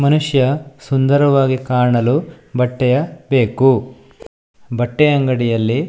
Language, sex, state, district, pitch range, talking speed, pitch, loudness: Kannada, male, Karnataka, Shimoga, 125-145 Hz, 70 wpm, 130 Hz, -16 LUFS